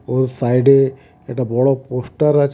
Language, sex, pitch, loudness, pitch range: Bengali, male, 130 Hz, -16 LUFS, 125-135 Hz